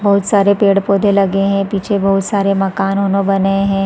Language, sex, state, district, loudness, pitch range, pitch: Hindi, female, Chhattisgarh, Raigarh, -14 LUFS, 195-200 Hz, 195 Hz